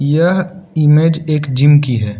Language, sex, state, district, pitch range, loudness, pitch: Hindi, male, Arunachal Pradesh, Lower Dibang Valley, 140-165 Hz, -13 LUFS, 150 Hz